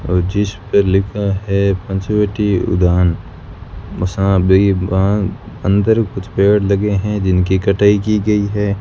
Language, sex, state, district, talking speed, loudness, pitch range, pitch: Hindi, male, Rajasthan, Bikaner, 115 wpm, -15 LUFS, 95-105 Hz, 100 Hz